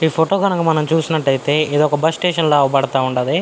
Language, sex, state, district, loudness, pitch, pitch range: Telugu, male, Andhra Pradesh, Anantapur, -16 LUFS, 155 Hz, 140-160 Hz